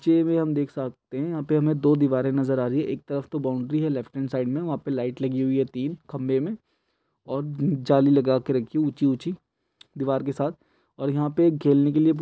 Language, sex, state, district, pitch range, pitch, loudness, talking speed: Hindi, male, Uttar Pradesh, Etah, 135-155 Hz, 140 Hz, -25 LUFS, 250 wpm